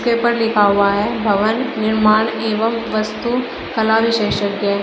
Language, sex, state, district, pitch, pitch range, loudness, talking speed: Hindi, female, Uttar Pradesh, Shamli, 220 Hz, 210-230 Hz, -17 LUFS, 125 wpm